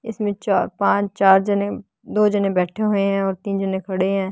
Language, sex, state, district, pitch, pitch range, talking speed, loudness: Hindi, female, Haryana, Jhajjar, 195 Hz, 190-205 Hz, 210 wpm, -20 LUFS